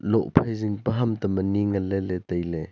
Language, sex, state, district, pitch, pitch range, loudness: Wancho, male, Arunachal Pradesh, Longding, 100 Hz, 95-110 Hz, -25 LUFS